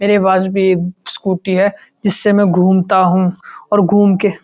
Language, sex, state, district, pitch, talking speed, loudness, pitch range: Hindi, male, Uttarakhand, Uttarkashi, 190 Hz, 175 wpm, -14 LUFS, 185-205 Hz